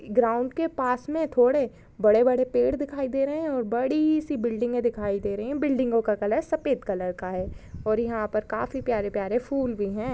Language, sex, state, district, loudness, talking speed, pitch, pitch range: Hindi, female, Uttar Pradesh, Budaun, -26 LUFS, 200 wpm, 245 Hz, 215-275 Hz